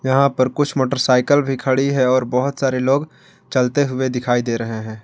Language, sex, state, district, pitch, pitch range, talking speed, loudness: Hindi, male, Jharkhand, Ranchi, 130 Hz, 125-140 Hz, 200 wpm, -18 LUFS